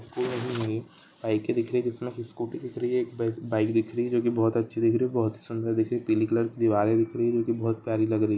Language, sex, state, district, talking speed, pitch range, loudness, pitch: Hindi, male, Chhattisgarh, Rajnandgaon, 330 wpm, 110-120 Hz, -27 LUFS, 115 Hz